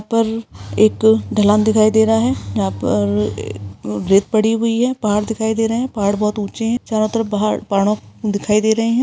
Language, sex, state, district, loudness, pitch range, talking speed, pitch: Hindi, female, Uttarakhand, Uttarkashi, -17 LUFS, 200-225 Hz, 205 wpm, 215 Hz